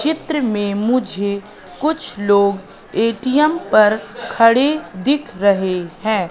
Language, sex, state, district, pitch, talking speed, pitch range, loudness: Hindi, female, Madhya Pradesh, Katni, 215 Hz, 105 wpm, 200-265 Hz, -17 LUFS